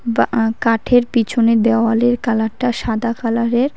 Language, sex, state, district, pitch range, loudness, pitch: Bengali, female, West Bengal, Cooch Behar, 225-245 Hz, -16 LUFS, 230 Hz